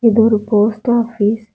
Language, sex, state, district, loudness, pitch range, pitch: Tamil, female, Tamil Nadu, Kanyakumari, -15 LUFS, 210-230 Hz, 220 Hz